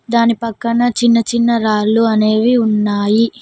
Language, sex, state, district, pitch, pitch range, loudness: Telugu, female, Telangana, Mahabubabad, 230 Hz, 215-235 Hz, -14 LUFS